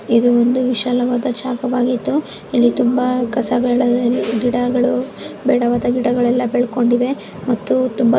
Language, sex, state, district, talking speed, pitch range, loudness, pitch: Kannada, female, Karnataka, Chamarajanagar, 100 wpm, 240-250 Hz, -17 LUFS, 245 Hz